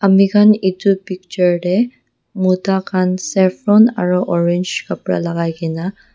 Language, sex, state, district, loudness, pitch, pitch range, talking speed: Nagamese, female, Nagaland, Dimapur, -15 LUFS, 185 Hz, 180-195 Hz, 135 wpm